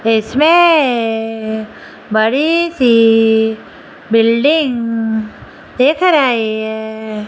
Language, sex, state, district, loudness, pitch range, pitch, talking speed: Hindi, female, Rajasthan, Jaipur, -13 LUFS, 220-275 Hz, 225 Hz, 60 wpm